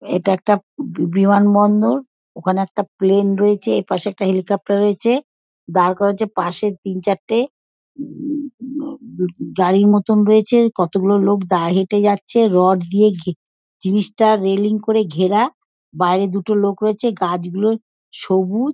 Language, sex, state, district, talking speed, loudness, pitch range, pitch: Bengali, female, West Bengal, Dakshin Dinajpur, 130 wpm, -17 LUFS, 190-220 Hz, 200 Hz